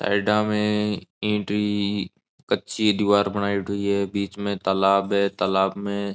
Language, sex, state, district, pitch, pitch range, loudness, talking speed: Marwari, male, Rajasthan, Nagaur, 100 Hz, 100-105 Hz, -23 LUFS, 155 wpm